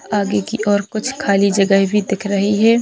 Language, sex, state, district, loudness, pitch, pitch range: Hindi, female, Chhattisgarh, Bilaspur, -16 LUFS, 205 Hz, 200-215 Hz